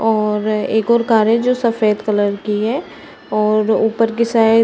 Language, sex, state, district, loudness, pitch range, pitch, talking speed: Hindi, female, Uttar Pradesh, Varanasi, -16 LUFS, 215-230 Hz, 220 Hz, 195 wpm